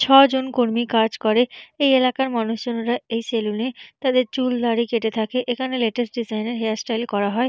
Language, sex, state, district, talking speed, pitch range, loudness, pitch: Bengali, female, West Bengal, Purulia, 175 wpm, 225-255 Hz, -21 LUFS, 235 Hz